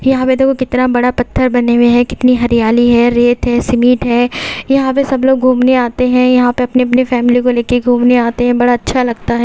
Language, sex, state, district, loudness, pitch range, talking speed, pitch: Hindi, female, Haryana, Jhajjar, -11 LUFS, 240-255 Hz, 235 wpm, 245 Hz